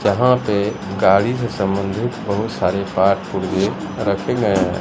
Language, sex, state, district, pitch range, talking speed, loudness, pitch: Hindi, male, Bihar, Katihar, 95-115 Hz, 150 wpm, -19 LUFS, 100 Hz